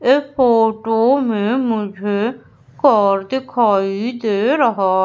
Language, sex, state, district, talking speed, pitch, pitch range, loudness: Hindi, female, Madhya Pradesh, Umaria, 95 wpm, 225 Hz, 205-250 Hz, -16 LUFS